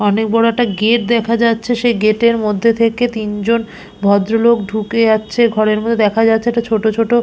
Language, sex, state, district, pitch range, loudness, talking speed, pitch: Bengali, female, West Bengal, Purulia, 215-235 Hz, -14 LUFS, 180 wpm, 225 Hz